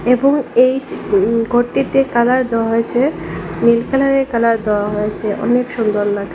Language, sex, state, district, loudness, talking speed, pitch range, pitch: Bengali, female, Assam, Hailakandi, -16 LUFS, 140 wpm, 225-265 Hz, 240 Hz